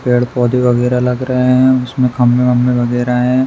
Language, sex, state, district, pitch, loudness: Hindi, male, Uttar Pradesh, Hamirpur, 125 Hz, -13 LUFS